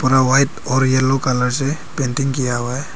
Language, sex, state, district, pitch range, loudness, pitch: Hindi, male, Arunachal Pradesh, Papum Pare, 130-135 Hz, -17 LUFS, 130 Hz